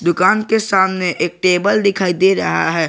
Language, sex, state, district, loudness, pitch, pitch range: Hindi, male, Jharkhand, Garhwa, -15 LUFS, 190 Hz, 180-200 Hz